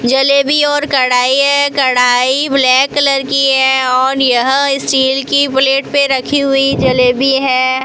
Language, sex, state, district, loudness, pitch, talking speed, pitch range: Hindi, female, Rajasthan, Bikaner, -11 LUFS, 270 Hz, 145 wpm, 260-280 Hz